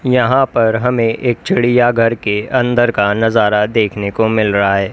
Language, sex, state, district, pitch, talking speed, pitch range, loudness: Hindi, male, Uttar Pradesh, Lalitpur, 115 Hz, 170 wpm, 105-120 Hz, -14 LUFS